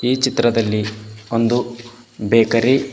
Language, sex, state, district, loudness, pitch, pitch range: Kannada, male, Karnataka, Bidar, -17 LUFS, 115 Hz, 110-120 Hz